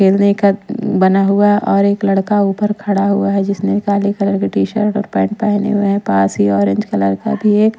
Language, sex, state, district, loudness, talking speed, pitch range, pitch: Hindi, female, Odisha, Nuapada, -14 LUFS, 225 wpm, 195-205 Hz, 200 Hz